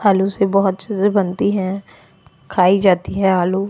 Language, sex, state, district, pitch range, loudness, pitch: Hindi, female, Goa, North and South Goa, 190-200 Hz, -17 LUFS, 195 Hz